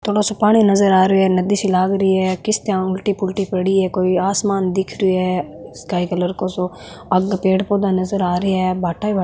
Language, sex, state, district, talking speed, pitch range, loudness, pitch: Marwari, female, Rajasthan, Nagaur, 240 wpm, 185-200 Hz, -17 LUFS, 190 Hz